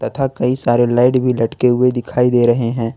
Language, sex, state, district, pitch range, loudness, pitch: Hindi, male, Jharkhand, Ranchi, 120-125 Hz, -15 LUFS, 125 Hz